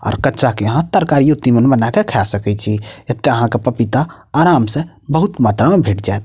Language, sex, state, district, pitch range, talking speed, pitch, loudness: Maithili, male, Bihar, Purnia, 105-150 Hz, 210 wpm, 120 Hz, -14 LUFS